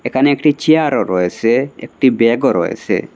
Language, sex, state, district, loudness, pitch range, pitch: Bengali, male, Assam, Hailakandi, -14 LUFS, 115-145 Hz, 130 Hz